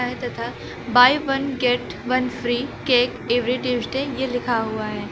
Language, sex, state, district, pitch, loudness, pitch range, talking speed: Hindi, female, Uttar Pradesh, Lucknow, 245 Hz, -21 LUFS, 245-260 Hz, 165 wpm